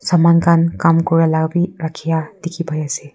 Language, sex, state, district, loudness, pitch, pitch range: Nagamese, female, Nagaland, Kohima, -16 LUFS, 165 Hz, 160-170 Hz